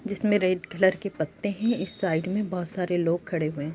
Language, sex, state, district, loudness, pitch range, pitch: Hindi, female, Bihar, East Champaran, -27 LUFS, 170-200 Hz, 185 Hz